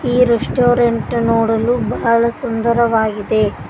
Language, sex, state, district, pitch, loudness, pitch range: Kannada, female, Karnataka, Koppal, 235 Hz, -15 LUFS, 225-240 Hz